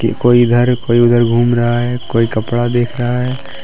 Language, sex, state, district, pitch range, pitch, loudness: Hindi, male, Jharkhand, Deoghar, 120-125 Hz, 120 Hz, -13 LUFS